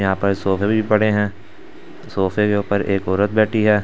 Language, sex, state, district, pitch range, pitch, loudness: Hindi, male, Delhi, New Delhi, 100-105 Hz, 100 Hz, -19 LUFS